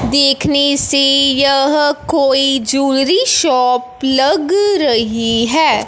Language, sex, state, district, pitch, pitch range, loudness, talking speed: Hindi, female, Punjab, Fazilka, 275 Hz, 265-300 Hz, -12 LUFS, 90 wpm